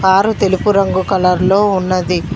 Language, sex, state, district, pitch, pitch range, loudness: Telugu, female, Telangana, Mahabubabad, 190 Hz, 185-195 Hz, -13 LUFS